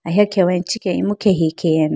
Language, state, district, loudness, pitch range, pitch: Idu Mishmi, Arunachal Pradesh, Lower Dibang Valley, -18 LUFS, 170-205 Hz, 180 Hz